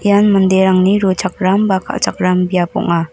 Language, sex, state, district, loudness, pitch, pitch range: Garo, female, Meghalaya, North Garo Hills, -14 LUFS, 190 Hz, 185-195 Hz